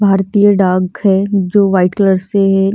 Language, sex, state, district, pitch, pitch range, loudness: Hindi, female, Delhi, New Delhi, 195 Hz, 190-200 Hz, -12 LUFS